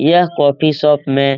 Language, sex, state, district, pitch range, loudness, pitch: Hindi, male, Bihar, Lakhisarai, 140-155 Hz, -13 LUFS, 150 Hz